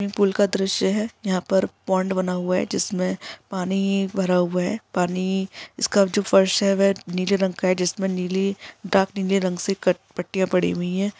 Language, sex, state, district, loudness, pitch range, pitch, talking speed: Hindi, female, Chhattisgarh, Raigarh, -22 LUFS, 185-195 Hz, 190 Hz, 200 wpm